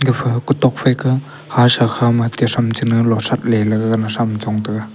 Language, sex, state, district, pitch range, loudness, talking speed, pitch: Wancho, male, Arunachal Pradesh, Longding, 110-130 Hz, -16 LUFS, 195 wpm, 120 Hz